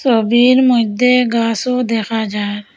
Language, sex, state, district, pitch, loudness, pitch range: Bengali, female, Assam, Hailakandi, 230 Hz, -14 LUFS, 220-250 Hz